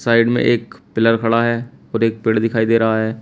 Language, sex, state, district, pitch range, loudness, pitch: Hindi, male, Uttar Pradesh, Shamli, 110-115 Hz, -17 LUFS, 115 Hz